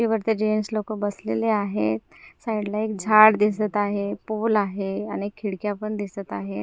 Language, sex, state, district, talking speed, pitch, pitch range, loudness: Marathi, female, Maharashtra, Gondia, 170 wpm, 210 Hz, 200-215 Hz, -23 LUFS